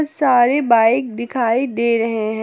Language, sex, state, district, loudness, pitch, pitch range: Hindi, female, Jharkhand, Palamu, -16 LUFS, 235 Hz, 230-260 Hz